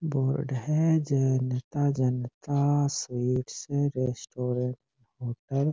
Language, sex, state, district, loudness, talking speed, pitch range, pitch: Rajasthani, male, Rajasthan, Nagaur, -28 LUFS, 85 wpm, 125-145 Hz, 135 Hz